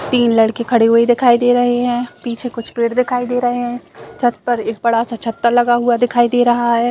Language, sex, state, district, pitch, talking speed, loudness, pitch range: Hindi, female, Chhattisgarh, Bastar, 240 Hz, 235 wpm, -15 LUFS, 235-245 Hz